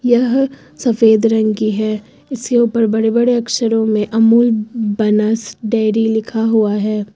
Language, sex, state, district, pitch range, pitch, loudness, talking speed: Hindi, female, Uttar Pradesh, Lucknow, 215-235 Hz, 225 Hz, -15 LUFS, 140 wpm